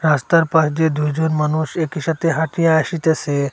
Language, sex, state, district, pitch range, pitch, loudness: Bengali, male, Assam, Hailakandi, 150-165 Hz, 160 Hz, -18 LUFS